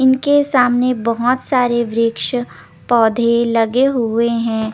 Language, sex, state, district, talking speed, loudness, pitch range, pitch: Hindi, female, Chandigarh, Chandigarh, 125 wpm, -15 LUFS, 230-255 Hz, 240 Hz